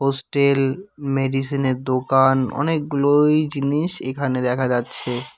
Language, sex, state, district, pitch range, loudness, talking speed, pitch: Bengali, male, West Bengal, Cooch Behar, 130-145 Hz, -20 LUFS, 90 wpm, 135 Hz